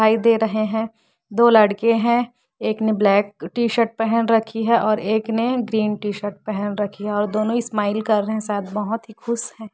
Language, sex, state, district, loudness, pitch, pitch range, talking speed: Hindi, female, Chhattisgarh, Korba, -20 LUFS, 220 Hz, 210-230 Hz, 210 wpm